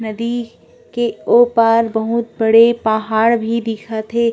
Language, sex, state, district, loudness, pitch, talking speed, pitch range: Chhattisgarhi, female, Chhattisgarh, Korba, -15 LUFS, 230 Hz, 140 wpm, 220-235 Hz